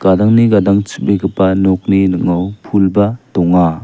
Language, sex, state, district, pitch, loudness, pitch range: Garo, male, Meghalaya, West Garo Hills, 95 Hz, -13 LUFS, 95-100 Hz